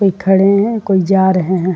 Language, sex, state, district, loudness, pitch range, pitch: Hindi, female, Uttar Pradesh, Varanasi, -13 LUFS, 185-195 Hz, 190 Hz